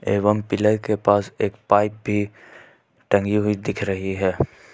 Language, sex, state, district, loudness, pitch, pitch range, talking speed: Hindi, male, Jharkhand, Ranchi, -22 LUFS, 105 Hz, 100-105 Hz, 150 wpm